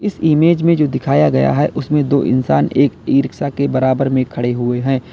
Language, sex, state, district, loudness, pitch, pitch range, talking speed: Hindi, male, Uttar Pradesh, Lalitpur, -15 LUFS, 135 Hz, 125-150 Hz, 210 wpm